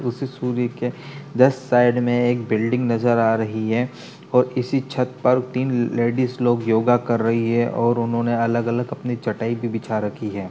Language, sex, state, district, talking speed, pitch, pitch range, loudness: Hindi, male, Uttar Pradesh, Etah, 165 wpm, 120 Hz, 115-125 Hz, -21 LUFS